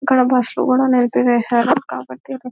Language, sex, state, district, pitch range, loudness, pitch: Telugu, female, Telangana, Nalgonda, 235-255 Hz, -16 LUFS, 250 Hz